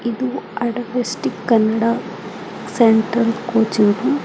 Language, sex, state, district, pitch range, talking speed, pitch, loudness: Kannada, female, Karnataka, Bidar, 225-245 Hz, 70 wpm, 235 Hz, -18 LUFS